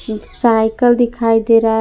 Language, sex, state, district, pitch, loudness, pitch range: Hindi, female, Jharkhand, Palamu, 225 Hz, -14 LUFS, 220-240 Hz